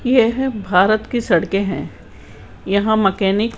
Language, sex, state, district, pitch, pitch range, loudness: Hindi, female, Rajasthan, Jaipur, 195 Hz, 170-225 Hz, -17 LUFS